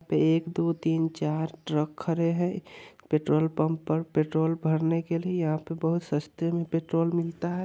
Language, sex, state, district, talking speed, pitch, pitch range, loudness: Hindi, male, Bihar, Vaishali, 170 wpm, 165 Hz, 160-170 Hz, -28 LUFS